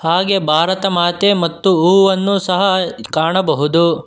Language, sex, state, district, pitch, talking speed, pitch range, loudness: Kannada, male, Karnataka, Bangalore, 180 Hz, 90 wpm, 165-195 Hz, -14 LUFS